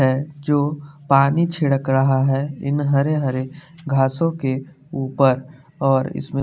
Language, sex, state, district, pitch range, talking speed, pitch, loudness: Hindi, male, Bihar, West Champaran, 135-150 Hz, 140 wpm, 140 Hz, -20 LUFS